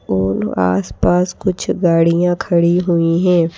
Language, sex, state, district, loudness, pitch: Hindi, female, Madhya Pradesh, Bhopal, -15 LUFS, 170 Hz